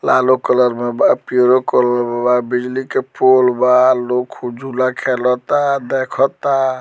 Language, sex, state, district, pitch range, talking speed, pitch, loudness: Bhojpuri, male, Bihar, Muzaffarpur, 125-130 Hz, 140 wpm, 125 Hz, -15 LUFS